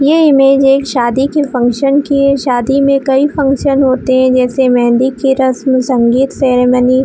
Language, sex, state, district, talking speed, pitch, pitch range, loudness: Hindi, female, Jharkhand, Jamtara, 185 wpm, 265 Hz, 255-275 Hz, -11 LUFS